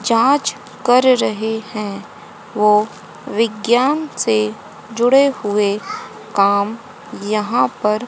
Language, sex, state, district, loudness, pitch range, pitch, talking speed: Hindi, female, Haryana, Rohtak, -17 LUFS, 210-250 Hz, 220 Hz, 90 wpm